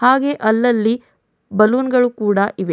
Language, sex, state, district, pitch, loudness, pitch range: Kannada, female, Karnataka, Bidar, 230 Hz, -16 LUFS, 210-250 Hz